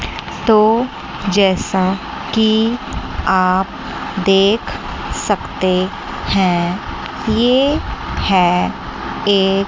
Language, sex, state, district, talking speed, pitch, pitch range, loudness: Hindi, female, Chandigarh, Chandigarh, 60 wpm, 195 Hz, 185-225 Hz, -16 LUFS